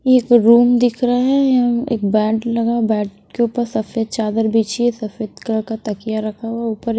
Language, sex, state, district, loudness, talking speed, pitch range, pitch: Hindi, female, Bihar, West Champaran, -17 LUFS, 225 wpm, 220-240 Hz, 230 Hz